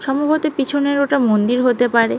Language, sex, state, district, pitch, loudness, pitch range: Bengali, female, West Bengal, Malda, 275 Hz, -17 LUFS, 245-285 Hz